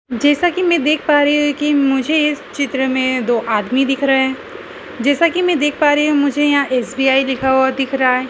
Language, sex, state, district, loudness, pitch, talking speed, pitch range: Hindi, female, Madhya Pradesh, Dhar, -15 LUFS, 280 Hz, 230 wpm, 265-295 Hz